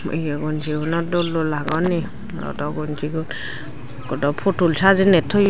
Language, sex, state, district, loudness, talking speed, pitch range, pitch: Chakma, female, Tripura, Dhalai, -21 LUFS, 140 wpm, 150-175 Hz, 160 Hz